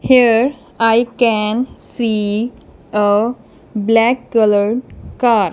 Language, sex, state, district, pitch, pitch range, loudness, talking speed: English, female, Punjab, Kapurthala, 230 Hz, 215-245 Hz, -15 LUFS, 85 wpm